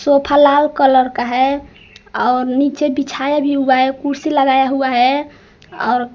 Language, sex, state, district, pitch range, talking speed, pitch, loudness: Hindi, female, Bihar, Kaimur, 260-285 Hz, 155 wpm, 275 Hz, -15 LUFS